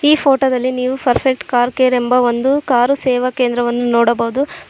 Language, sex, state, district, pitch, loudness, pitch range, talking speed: Kannada, female, Karnataka, Koppal, 250 Hz, -15 LUFS, 245-270 Hz, 165 wpm